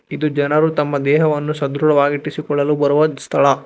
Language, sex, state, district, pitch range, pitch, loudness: Kannada, male, Karnataka, Bangalore, 145-150 Hz, 145 Hz, -17 LUFS